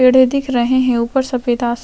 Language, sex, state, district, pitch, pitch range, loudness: Hindi, female, Chhattisgarh, Sukma, 250 Hz, 240-260 Hz, -15 LUFS